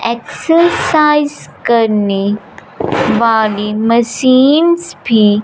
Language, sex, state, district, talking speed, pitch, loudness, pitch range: Hindi, female, Punjab, Fazilka, 55 wpm, 235 Hz, -12 LUFS, 215-295 Hz